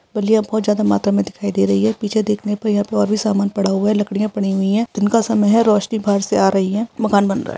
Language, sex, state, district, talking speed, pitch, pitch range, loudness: Hindi, female, Uttarakhand, Uttarkashi, 300 wpm, 210 Hz, 200-215 Hz, -17 LUFS